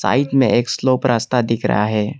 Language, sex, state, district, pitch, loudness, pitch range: Hindi, male, Arunachal Pradesh, Lower Dibang Valley, 120 Hz, -17 LUFS, 110-130 Hz